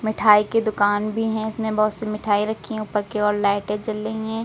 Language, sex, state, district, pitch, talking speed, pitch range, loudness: Hindi, female, Uttar Pradesh, Lucknow, 215 Hz, 245 wpm, 210-220 Hz, -21 LUFS